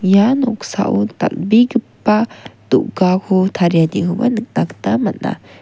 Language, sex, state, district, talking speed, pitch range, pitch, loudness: Garo, female, Meghalaya, West Garo Hills, 85 wpm, 185-230 Hz, 200 Hz, -16 LUFS